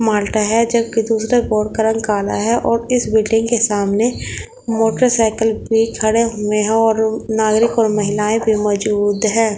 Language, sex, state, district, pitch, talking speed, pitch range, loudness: Hindi, female, Delhi, New Delhi, 220 Hz, 165 wpm, 215-225 Hz, -16 LUFS